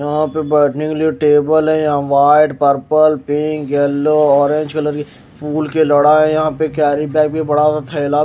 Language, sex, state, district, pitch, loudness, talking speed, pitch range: Hindi, male, Bihar, Patna, 150 Hz, -14 LUFS, 205 wpm, 145-155 Hz